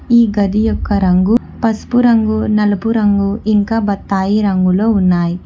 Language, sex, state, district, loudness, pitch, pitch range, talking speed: Telugu, female, Telangana, Hyderabad, -14 LUFS, 210 Hz, 195-225 Hz, 130 wpm